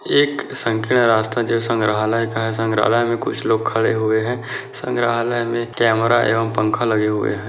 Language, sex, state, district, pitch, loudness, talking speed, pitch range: Hindi, male, Bihar, Kishanganj, 115 Hz, -18 LUFS, 175 wpm, 110-120 Hz